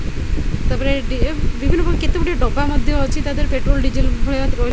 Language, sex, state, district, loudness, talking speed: Odia, female, Odisha, Khordha, -20 LUFS, 215 wpm